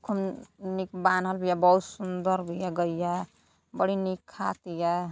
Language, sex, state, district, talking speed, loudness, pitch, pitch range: Hindi, female, Uttar Pradesh, Gorakhpur, 115 wpm, -28 LUFS, 185 Hz, 175-190 Hz